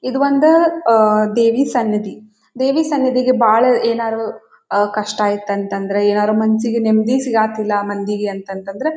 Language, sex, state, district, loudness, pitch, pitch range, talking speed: Kannada, female, Karnataka, Dharwad, -16 LUFS, 220 Hz, 205-255 Hz, 140 wpm